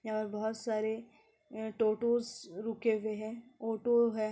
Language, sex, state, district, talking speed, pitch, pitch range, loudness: Hindi, female, Bihar, Kishanganj, 155 wpm, 220 Hz, 215-230 Hz, -34 LUFS